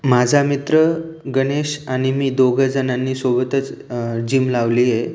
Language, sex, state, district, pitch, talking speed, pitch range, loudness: Marathi, male, Maharashtra, Aurangabad, 130 Hz, 130 wpm, 125-140 Hz, -18 LUFS